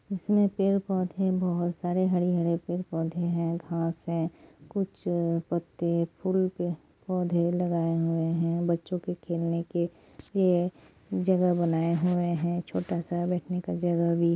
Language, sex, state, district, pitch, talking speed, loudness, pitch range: Hindi, female, West Bengal, Jalpaiguri, 175 Hz, 150 wpm, -28 LUFS, 170-180 Hz